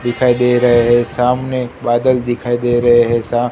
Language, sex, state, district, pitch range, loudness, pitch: Hindi, male, Gujarat, Gandhinagar, 120-125 Hz, -14 LUFS, 120 Hz